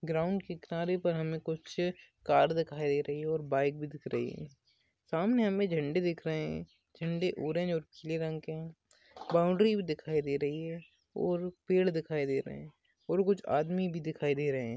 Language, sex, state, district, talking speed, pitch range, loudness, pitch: Hindi, male, Chhattisgarh, Bastar, 205 wpm, 145-175 Hz, -33 LUFS, 160 Hz